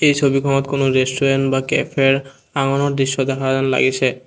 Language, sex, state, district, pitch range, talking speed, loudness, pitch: Assamese, male, Assam, Kamrup Metropolitan, 135-140 Hz, 140 wpm, -17 LUFS, 135 Hz